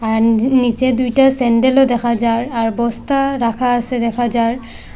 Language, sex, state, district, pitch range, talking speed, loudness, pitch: Bengali, female, Assam, Hailakandi, 230-255 Hz, 155 wpm, -15 LUFS, 240 Hz